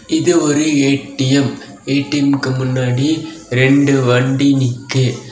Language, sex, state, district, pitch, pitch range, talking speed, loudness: Tamil, male, Tamil Nadu, Kanyakumari, 140 Hz, 130-145 Hz, 90 wpm, -15 LUFS